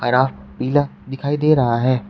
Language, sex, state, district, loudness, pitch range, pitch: Hindi, male, Uttar Pradesh, Shamli, -19 LUFS, 120-145 Hz, 130 Hz